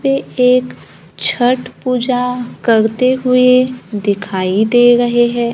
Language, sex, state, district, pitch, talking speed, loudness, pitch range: Hindi, female, Maharashtra, Gondia, 245 Hz, 110 wpm, -14 LUFS, 235-250 Hz